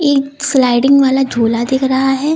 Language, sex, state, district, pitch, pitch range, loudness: Hindi, female, Uttar Pradesh, Lucknow, 270 Hz, 260-275 Hz, -13 LUFS